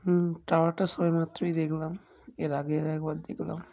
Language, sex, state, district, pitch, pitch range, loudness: Bengali, male, West Bengal, Kolkata, 165 Hz, 155-175 Hz, -30 LUFS